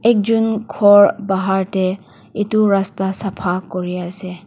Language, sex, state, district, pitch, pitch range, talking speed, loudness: Nagamese, female, Nagaland, Dimapur, 195 Hz, 185-210 Hz, 120 wpm, -17 LUFS